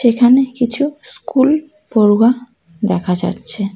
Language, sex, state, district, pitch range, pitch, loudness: Bengali, female, West Bengal, Alipurduar, 205-270 Hz, 240 Hz, -15 LUFS